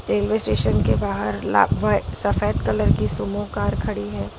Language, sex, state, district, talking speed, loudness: Hindi, female, Gujarat, Valsad, 180 wpm, -21 LUFS